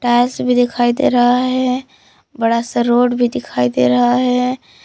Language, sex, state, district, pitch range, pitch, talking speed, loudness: Hindi, female, Jharkhand, Palamu, 240-250 Hz, 245 Hz, 175 wpm, -15 LUFS